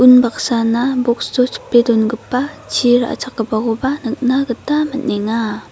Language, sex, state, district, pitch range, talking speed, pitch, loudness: Garo, female, Meghalaya, South Garo Hills, 230-265 Hz, 95 wpm, 245 Hz, -16 LUFS